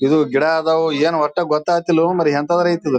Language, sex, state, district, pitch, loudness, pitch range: Kannada, male, Karnataka, Bijapur, 160 Hz, -17 LUFS, 150-170 Hz